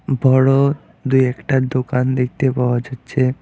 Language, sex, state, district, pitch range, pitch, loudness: Bengali, male, West Bengal, Alipurduar, 125-135 Hz, 130 Hz, -17 LUFS